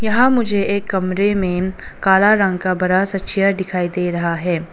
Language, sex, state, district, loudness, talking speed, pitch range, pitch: Hindi, female, Arunachal Pradesh, Papum Pare, -17 LUFS, 175 wpm, 180-200 Hz, 190 Hz